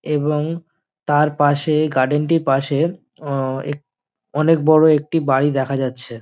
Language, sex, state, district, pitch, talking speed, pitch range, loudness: Bengali, male, West Bengal, Dakshin Dinajpur, 150 Hz, 125 wpm, 135-160 Hz, -18 LUFS